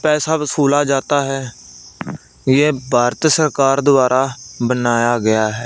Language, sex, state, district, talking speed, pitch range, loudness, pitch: Hindi, male, Punjab, Fazilka, 115 wpm, 120-145 Hz, -16 LUFS, 135 Hz